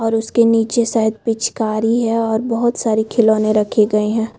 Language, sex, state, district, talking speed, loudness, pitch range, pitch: Hindi, female, Chhattisgarh, Bilaspur, 165 wpm, -16 LUFS, 220-230 Hz, 225 Hz